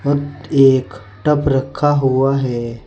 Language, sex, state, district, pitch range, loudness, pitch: Hindi, male, Uttar Pradesh, Saharanpur, 130-145 Hz, -16 LUFS, 135 Hz